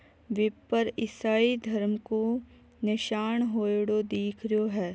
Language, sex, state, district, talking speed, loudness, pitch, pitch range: Marwari, female, Rajasthan, Nagaur, 120 wpm, -29 LUFS, 220 Hz, 215-225 Hz